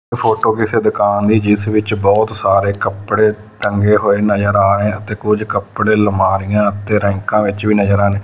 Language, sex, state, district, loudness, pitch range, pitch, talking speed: Punjabi, male, Punjab, Fazilka, -14 LUFS, 100-105 Hz, 105 Hz, 195 wpm